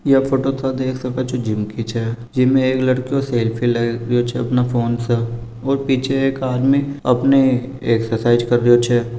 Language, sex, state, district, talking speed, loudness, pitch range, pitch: Marwari, male, Rajasthan, Nagaur, 190 wpm, -18 LUFS, 120-130 Hz, 125 Hz